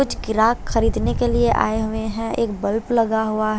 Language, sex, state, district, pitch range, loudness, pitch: Hindi, female, Delhi, New Delhi, 220-230 Hz, -20 LUFS, 220 Hz